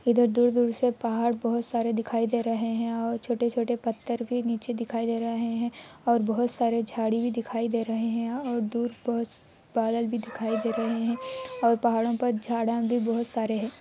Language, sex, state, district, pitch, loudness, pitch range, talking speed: Hindi, female, Andhra Pradesh, Anantapur, 235 Hz, -27 LUFS, 230-240 Hz, 195 wpm